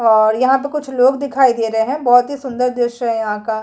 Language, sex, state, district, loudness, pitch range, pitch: Hindi, female, Chhattisgarh, Kabirdham, -16 LUFS, 225-265 Hz, 245 Hz